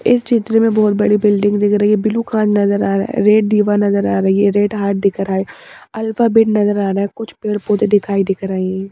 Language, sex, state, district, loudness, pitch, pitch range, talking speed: Hindi, female, Madhya Pradesh, Bhopal, -15 LUFS, 205 Hz, 200-215 Hz, 260 wpm